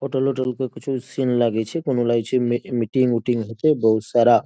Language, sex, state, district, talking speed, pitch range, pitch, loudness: Hindi, male, Bihar, Araria, 175 wpm, 120-130 Hz, 125 Hz, -21 LUFS